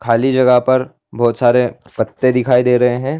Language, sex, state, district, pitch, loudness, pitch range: Hindi, male, Chhattisgarh, Bilaspur, 125 Hz, -14 LUFS, 125-130 Hz